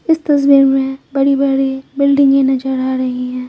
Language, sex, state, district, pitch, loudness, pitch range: Hindi, female, Bihar, Patna, 270 Hz, -14 LUFS, 265-280 Hz